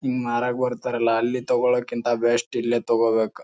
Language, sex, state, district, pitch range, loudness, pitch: Kannada, male, Karnataka, Bijapur, 120-125 Hz, -23 LUFS, 120 Hz